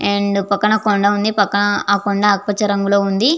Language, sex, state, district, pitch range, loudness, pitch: Telugu, female, Andhra Pradesh, Visakhapatnam, 200-210 Hz, -16 LUFS, 205 Hz